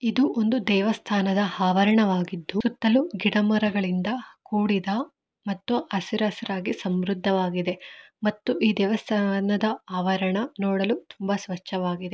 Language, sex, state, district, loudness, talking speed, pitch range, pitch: Kannada, female, Karnataka, Mysore, -25 LUFS, 100 wpm, 190-220 Hz, 200 Hz